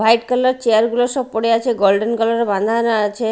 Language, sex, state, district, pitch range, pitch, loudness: Bengali, female, Odisha, Malkangiri, 220-245 Hz, 230 Hz, -16 LUFS